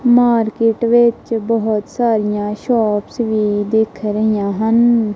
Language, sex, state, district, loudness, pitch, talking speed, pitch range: Punjabi, female, Punjab, Kapurthala, -16 LUFS, 220 Hz, 105 wpm, 210-235 Hz